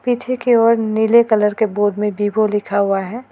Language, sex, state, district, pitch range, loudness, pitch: Hindi, female, West Bengal, Alipurduar, 205-235 Hz, -16 LUFS, 220 Hz